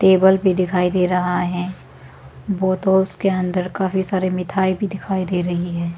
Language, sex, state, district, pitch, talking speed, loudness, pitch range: Hindi, female, Arunachal Pradesh, Lower Dibang Valley, 185 Hz, 170 wpm, -19 LUFS, 180-190 Hz